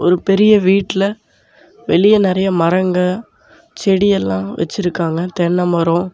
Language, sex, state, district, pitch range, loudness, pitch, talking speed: Tamil, male, Tamil Nadu, Namakkal, 175-200 Hz, -15 LUFS, 185 Hz, 90 wpm